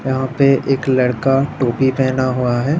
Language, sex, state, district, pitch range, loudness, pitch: Hindi, female, Bihar, Saran, 125-135 Hz, -16 LUFS, 130 Hz